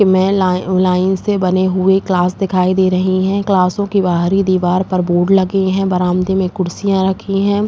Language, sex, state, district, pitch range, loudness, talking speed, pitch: Hindi, female, Uttar Pradesh, Jalaun, 185-195 Hz, -14 LUFS, 185 wpm, 190 Hz